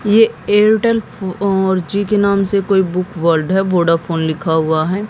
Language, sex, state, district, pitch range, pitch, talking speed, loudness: Hindi, female, Haryana, Jhajjar, 170-205 Hz, 190 Hz, 175 wpm, -15 LUFS